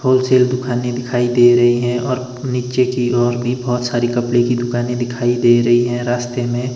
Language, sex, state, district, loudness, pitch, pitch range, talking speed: Hindi, male, Himachal Pradesh, Shimla, -16 LUFS, 120 Hz, 120-125 Hz, 195 wpm